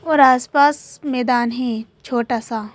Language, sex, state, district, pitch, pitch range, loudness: Hindi, female, Madhya Pradesh, Bhopal, 245 Hz, 235-275 Hz, -18 LUFS